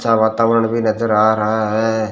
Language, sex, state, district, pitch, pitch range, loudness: Hindi, male, Rajasthan, Bikaner, 110 Hz, 110-115 Hz, -16 LUFS